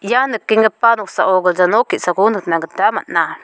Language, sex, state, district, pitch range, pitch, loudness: Garo, female, Meghalaya, South Garo Hills, 180-225 Hz, 210 Hz, -15 LUFS